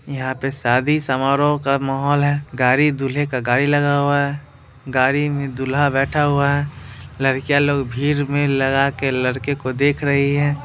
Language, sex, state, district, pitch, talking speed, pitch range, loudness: Hindi, male, Bihar, Muzaffarpur, 140 Hz, 170 wpm, 135-145 Hz, -18 LUFS